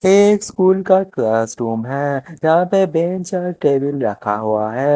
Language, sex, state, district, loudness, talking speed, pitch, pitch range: Hindi, male, Punjab, Kapurthala, -17 LUFS, 155 wpm, 160 Hz, 120-185 Hz